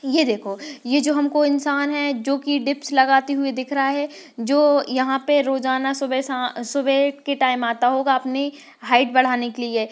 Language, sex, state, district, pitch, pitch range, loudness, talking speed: Hindi, female, Bihar, Jamui, 275 Hz, 255-285 Hz, -20 LUFS, 180 wpm